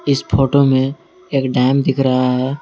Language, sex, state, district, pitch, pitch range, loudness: Hindi, male, Jharkhand, Garhwa, 135 Hz, 130-140 Hz, -16 LUFS